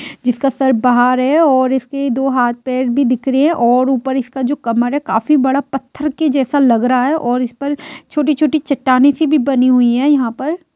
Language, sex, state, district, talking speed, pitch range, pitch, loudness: Hindi, female, Bihar, Sitamarhi, 210 wpm, 255-285 Hz, 265 Hz, -14 LUFS